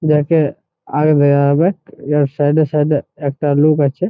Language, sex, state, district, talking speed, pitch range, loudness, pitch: Bengali, male, West Bengal, Jhargram, 205 wpm, 145-155 Hz, -15 LUFS, 150 Hz